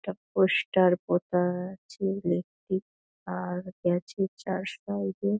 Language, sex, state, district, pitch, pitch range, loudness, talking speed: Bengali, female, West Bengal, Dakshin Dinajpur, 180 Hz, 145-190 Hz, -29 LUFS, 135 wpm